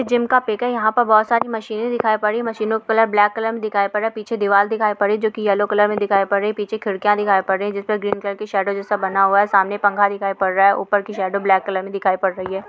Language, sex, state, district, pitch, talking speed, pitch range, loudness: Hindi, female, Bihar, Darbhanga, 205 Hz, 320 wpm, 200-220 Hz, -18 LUFS